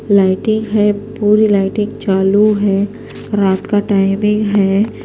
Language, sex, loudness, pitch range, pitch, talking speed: Urdu, female, -14 LUFS, 195-210 Hz, 205 Hz, 120 wpm